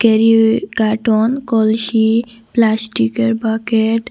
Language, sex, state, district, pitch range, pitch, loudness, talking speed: Bengali, female, Assam, Hailakandi, 220-230 Hz, 225 Hz, -15 LUFS, 75 wpm